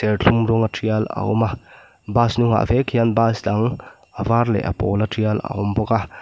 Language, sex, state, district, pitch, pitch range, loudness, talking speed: Mizo, male, Mizoram, Aizawl, 110 Hz, 105-115 Hz, -20 LUFS, 205 wpm